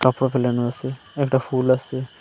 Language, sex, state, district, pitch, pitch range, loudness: Bengali, male, Assam, Hailakandi, 130 Hz, 125-130 Hz, -22 LUFS